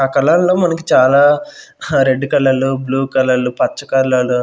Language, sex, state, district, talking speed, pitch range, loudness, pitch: Telugu, male, Andhra Pradesh, Manyam, 165 wpm, 130-155 Hz, -14 LUFS, 135 Hz